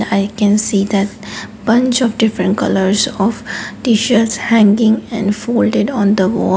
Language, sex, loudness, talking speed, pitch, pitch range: English, female, -14 LUFS, 145 wpm, 215 Hz, 205-230 Hz